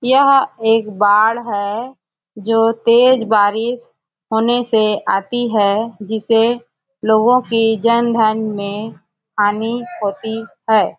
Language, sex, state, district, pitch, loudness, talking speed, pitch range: Hindi, female, Chhattisgarh, Bastar, 225 Hz, -15 LUFS, 115 wpm, 210-235 Hz